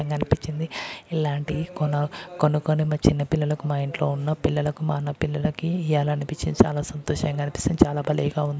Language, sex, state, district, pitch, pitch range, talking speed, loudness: Telugu, male, Andhra Pradesh, Guntur, 150 Hz, 145-155 Hz, 155 wpm, -25 LUFS